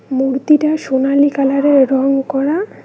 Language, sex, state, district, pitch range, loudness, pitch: Bengali, female, West Bengal, Cooch Behar, 270-290 Hz, -14 LUFS, 275 Hz